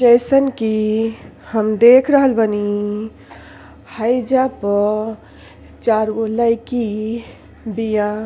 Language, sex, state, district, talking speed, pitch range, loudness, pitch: Bhojpuri, female, Uttar Pradesh, Ghazipur, 85 wpm, 210-235 Hz, -17 LUFS, 220 Hz